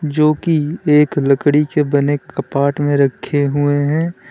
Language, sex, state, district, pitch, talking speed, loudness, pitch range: Hindi, male, Uttar Pradesh, Lalitpur, 145 Hz, 155 wpm, -16 LUFS, 140-150 Hz